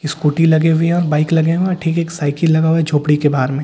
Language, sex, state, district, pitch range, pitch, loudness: Hindi, male, Bihar, Katihar, 150-165 Hz, 160 Hz, -15 LUFS